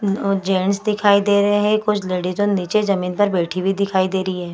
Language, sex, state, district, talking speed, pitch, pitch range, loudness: Hindi, female, Bihar, Gaya, 225 wpm, 195 Hz, 185-205 Hz, -18 LUFS